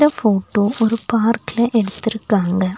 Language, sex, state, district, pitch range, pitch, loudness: Tamil, female, Tamil Nadu, Nilgiris, 205-230 Hz, 225 Hz, -18 LUFS